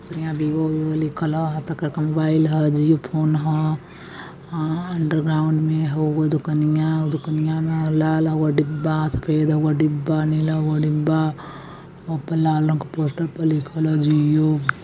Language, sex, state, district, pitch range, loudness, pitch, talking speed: Hindi, female, Uttar Pradesh, Varanasi, 155-160 Hz, -21 LUFS, 155 Hz, 160 wpm